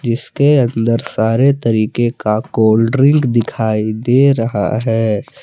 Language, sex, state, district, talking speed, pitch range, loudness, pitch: Hindi, male, Jharkhand, Palamu, 120 wpm, 110-130 Hz, -14 LUFS, 115 Hz